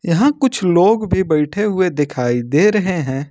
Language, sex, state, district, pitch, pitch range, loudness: Hindi, male, Jharkhand, Ranchi, 175 Hz, 145-210 Hz, -16 LUFS